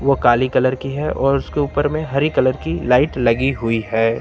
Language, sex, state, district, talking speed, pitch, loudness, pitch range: Hindi, male, Uttar Pradesh, Lucknow, 230 wpm, 130 Hz, -18 LUFS, 120-140 Hz